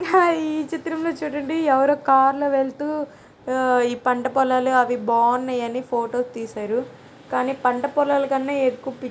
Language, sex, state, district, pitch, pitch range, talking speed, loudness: Telugu, female, Andhra Pradesh, Krishna, 265 Hz, 250-290 Hz, 145 wpm, -21 LUFS